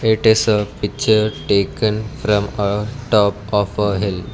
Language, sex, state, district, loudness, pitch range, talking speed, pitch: English, male, Karnataka, Bangalore, -18 LUFS, 100-110 Hz, 150 wpm, 105 Hz